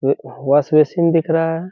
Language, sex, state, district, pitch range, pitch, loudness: Hindi, male, Bihar, Saharsa, 140-165 Hz, 155 Hz, -16 LUFS